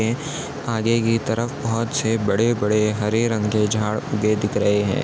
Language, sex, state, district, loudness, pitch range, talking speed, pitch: Hindi, male, Chhattisgarh, Balrampur, -21 LUFS, 105-115 Hz, 190 wpm, 110 Hz